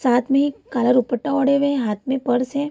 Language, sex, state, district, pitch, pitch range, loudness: Hindi, female, Bihar, Kishanganj, 265 Hz, 245-280 Hz, -20 LUFS